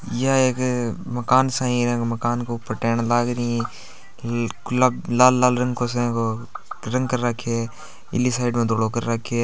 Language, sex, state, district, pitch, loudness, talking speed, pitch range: Hindi, male, Rajasthan, Churu, 120 Hz, -22 LUFS, 170 wpm, 115-125 Hz